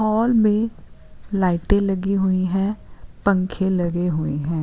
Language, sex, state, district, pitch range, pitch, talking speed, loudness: Hindi, female, Uttarakhand, Uttarkashi, 175-210 Hz, 190 Hz, 130 wpm, -21 LUFS